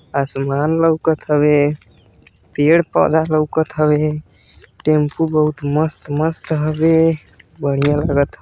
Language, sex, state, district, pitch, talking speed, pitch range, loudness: Bhojpuri, male, Uttar Pradesh, Deoria, 150 Hz, 105 wpm, 145-160 Hz, -17 LUFS